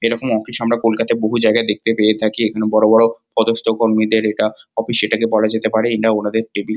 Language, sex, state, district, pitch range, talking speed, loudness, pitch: Bengali, male, West Bengal, Kolkata, 110-115 Hz, 205 wpm, -16 LUFS, 110 Hz